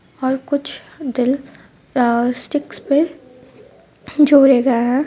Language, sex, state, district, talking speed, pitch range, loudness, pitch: Hindi, female, Jharkhand, Ranchi, 95 wpm, 255-285 Hz, -17 LUFS, 265 Hz